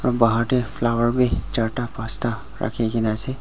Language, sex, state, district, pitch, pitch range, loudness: Nagamese, male, Nagaland, Dimapur, 115 Hz, 110-120 Hz, -22 LUFS